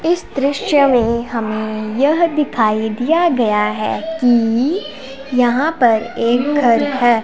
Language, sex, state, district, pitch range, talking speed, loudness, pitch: Hindi, female, Punjab, Pathankot, 230-290 Hz, 125 wpm, -16 LUFS, 245 Hz